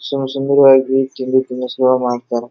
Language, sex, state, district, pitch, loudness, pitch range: Kannada, male, Karnataka, Dharwad, 130 Hz, -15 LUFS, 125-135 Hz